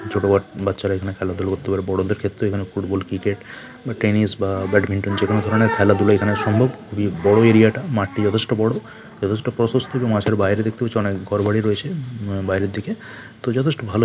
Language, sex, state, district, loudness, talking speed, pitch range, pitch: Bengali, male, West Bengal, North 24 Parganas, -20 LUFS, 180 wpm, 100-115 Hz, 105 Hz